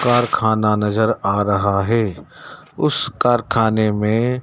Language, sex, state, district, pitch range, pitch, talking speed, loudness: Hindi, male, Madhya Pradesh, Dhar, 105-115 Hz, 110 Hz, 110 wpm, -18 LUFS